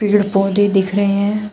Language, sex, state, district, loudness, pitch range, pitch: Hindi, female, Uttar Pradesh, Shamli, -16 LUFS, 195-205 Hz, 205 Hz